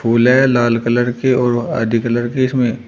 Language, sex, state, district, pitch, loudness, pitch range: Hindi, male, Uttar Pradesh, Shamli, 120 Hz, -15 LUFS, 120-125 Hz